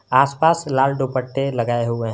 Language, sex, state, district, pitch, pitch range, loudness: Hindi, male, Jharkhand, Garhwa, 135 Hz, 120-140 Hz, -19 LUFS